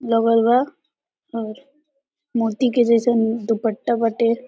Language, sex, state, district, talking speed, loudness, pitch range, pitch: Hindi, female, Jharkhand, Sahebganj, 105 wpm, -19 LUFS, 225-250 Hz, 235 Hz